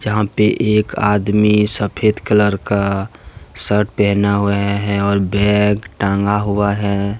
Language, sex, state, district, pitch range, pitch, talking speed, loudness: Hindi, male, Jharkhand, Deoghar, 100-105 Hz, 105 Hz, 125 wpm, -16 LUFS